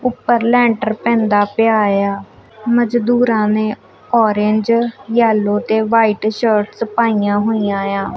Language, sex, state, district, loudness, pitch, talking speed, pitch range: Punjabi, female, Punjab, Kapurthala, -15 LUFS, 220 Hz, 125 wpm, 210-235 Hz